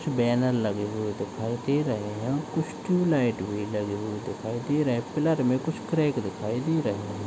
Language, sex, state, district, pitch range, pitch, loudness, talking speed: Hindi, male, Uttar Pradesh, Deoria, 105-150 Hz, 120 Hz, -27 LUFS, 205 wpm